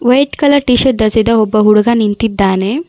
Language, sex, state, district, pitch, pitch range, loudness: Kannada, female, Karnataka, Bangalore, 225 Hz, 215-260 Hz, -11 LUFS